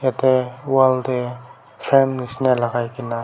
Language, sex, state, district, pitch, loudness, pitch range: Nagamese, male, Nagaland, Kohima, 130 Hz, -19 LUFS, 125-130 Hz